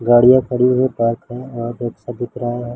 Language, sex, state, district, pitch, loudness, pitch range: Hindi, male, Jharkhand, Jamtara, 120 Hz, -17 LUFS, 120-125 Hz